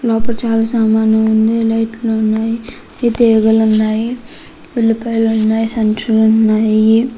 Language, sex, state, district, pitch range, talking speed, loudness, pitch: Telugu, female, Andhra Pradesh, Krishna, 220-230 Hz, 110 wpm, -14 LUFS, 225 Hz